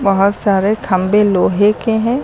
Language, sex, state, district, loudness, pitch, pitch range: Hindi, female, Uttar Pradesh, Lucknow, -14 LUFS, 205 Hz, 195-220 Hz